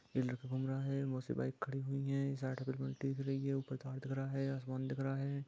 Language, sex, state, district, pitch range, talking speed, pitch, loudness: Magahi, male, Bihar, Gaya, 130-135 Hz, 175 wpm, 135 Hz, -40 LUFS